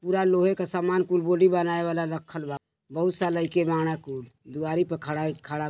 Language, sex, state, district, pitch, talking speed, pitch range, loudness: Bhojpuri, female, Uttar Pradesh, Deoria, 170 Hz, 210 wpm, 155-180 Hz, -26 LUFS